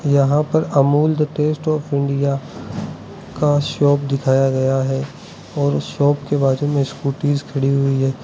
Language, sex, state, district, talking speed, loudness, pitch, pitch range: Hindi, male, Arunachal Pradesh, Lower Dibang Valley, 155 wpm, -18 LUFS, 140 Hz, 135-145 Hz